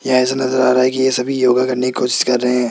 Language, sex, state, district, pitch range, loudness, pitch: Hindi, male, Rajasthan, Jaipur, 125-130 Hz, -15 LUFS, 125 Hz